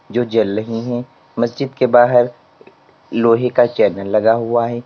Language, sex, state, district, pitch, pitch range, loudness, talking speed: Hindi, male, Uttar Pradesh, Lalitpur, 120 Hz, 115-120 Hz, -16 LUFS, 160 wpm